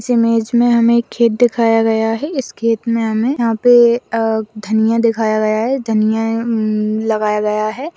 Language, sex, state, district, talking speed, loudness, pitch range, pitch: Hindi, female, Rajasthan, Churu, 175 wpm, -15 LUFS, 220-235 Hz, 225 Hz